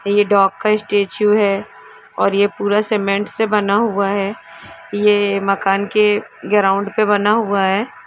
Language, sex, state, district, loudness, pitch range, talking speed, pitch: Hindi, female, Jharkhand, Jamtara, -16 LUFS, 195-210 Hz, 155 wpm, 205 Hz